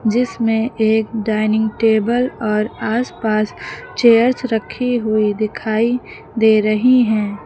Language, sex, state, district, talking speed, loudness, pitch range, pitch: Hindi, female, Uttar Pradesh, Lucknow, 105 wpm, -17 LUFS, 215-235 Hz, 220 Hz